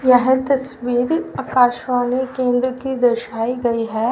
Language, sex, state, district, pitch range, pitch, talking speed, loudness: Hindi, female, Haryana, Rohtak, 245-260 Hz, 250 Hz, 115 wpm, -19 LUFS